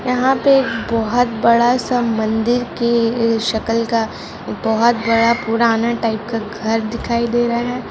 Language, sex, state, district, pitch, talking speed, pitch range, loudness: Hindi, female, Jharkhand, Sahebganj, 230 Hz, 145 wpm, 225-240 Hz, -17 LUFS